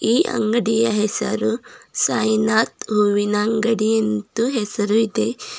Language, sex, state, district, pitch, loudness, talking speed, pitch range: Kannada, female, Karnataka, Bidar, 220 Hz, -19 LUFS, 95 wpm, 210-225 Hz